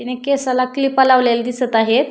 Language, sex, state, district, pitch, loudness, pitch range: Marathi, female, Maharashtra, Pune, 255 Hz, -16 LUFS, 245-270 Hz